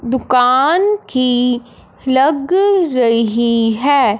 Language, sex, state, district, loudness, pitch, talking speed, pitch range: Hindi, female, Punjab, Fazilka, -14 LUFS, 255 Hz, 70 wpm, 240-285 Hz